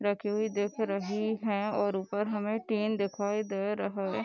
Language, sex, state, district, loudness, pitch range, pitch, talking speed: Hindi, female, Bihar, Darbhanga, -32 LUFS, 200-215 Hz, 205 Hz, 185 wpm